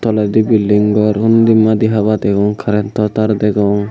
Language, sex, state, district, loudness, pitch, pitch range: Chakma, male, Tripura, Unakoti, -13 LUFS, 105 Hz, 105-110 Hz